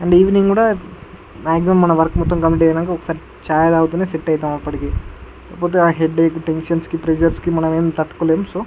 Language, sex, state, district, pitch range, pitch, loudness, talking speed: Telugu, male, Andhra Pradesh, Guntur, 160-175 Hz, 165 Hz, -16 LUFS, 195 wpm